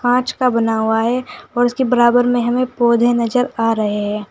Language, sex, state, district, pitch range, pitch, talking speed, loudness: Hindi, female, Uttar Pradesh, Saharanpur, 225-250 Hz, 240 Hz, 210 wpm, -16 LUFS